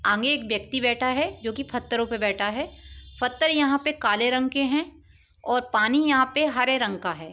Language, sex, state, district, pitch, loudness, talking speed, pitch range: Hindi, female, Uttar Pradesh, Etah, 255 Hz, -24 LUFS, 205 wpm, 230-285 Hz